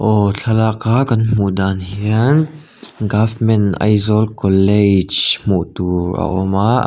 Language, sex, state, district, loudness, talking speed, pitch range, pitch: Mizo, male, Mizoram, Aizawl, -15 LUFS, 140 wpm, 95-110 Hz, 105 Hz